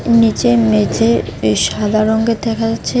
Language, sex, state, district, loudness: Bengali, female, West Bengal, Cooch Behar, -14 LUFS